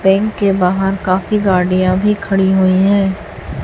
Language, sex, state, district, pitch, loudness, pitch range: Hindi, female, Chhattisgarh, Raipur, 195 Hz, -14 LUFS, 185-200 Hz